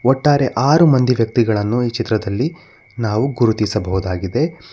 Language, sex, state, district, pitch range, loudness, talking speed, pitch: Kannada, male, Karnataka, Bangalore, 110-135 Hz, -17 LUFS, 100 wpm, 120 Hz